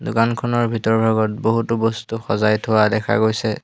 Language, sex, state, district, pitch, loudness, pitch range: Assamese, male, Assam, Hailakandi, 110 Hz, -19 LUFS, 110-115 Hz